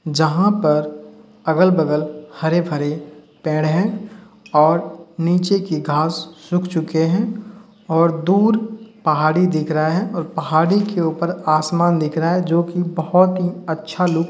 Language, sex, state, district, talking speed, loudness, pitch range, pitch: Hindi, male, Uttar Pradesh, Hamirpur, 140 wpm, -18 LUFS, 155-185 Hz, 165 Hz